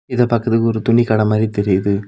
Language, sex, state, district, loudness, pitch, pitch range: Tamil, male, Tamil Nadu, Kanyakumari, -16 LUFS, 110 Hz, 105-115 Hz